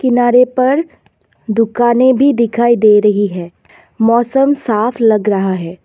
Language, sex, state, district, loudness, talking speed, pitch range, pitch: Hindi, female, Assam, Kamrup Metropolitan, -12 LUFS, 135 wpm, 210-250 Hz, 235 Hz